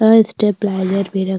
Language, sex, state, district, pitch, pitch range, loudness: Hindi, female, Uttarakhand, Tehri Garhwal, 200 Hz, 190-210 Hz, -16 LUFS